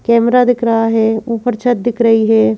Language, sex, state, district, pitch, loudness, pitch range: Hindi, female, Madhya Pradesh, Bhopal, 230 Hz, -13 LUFS, 225-240 Hz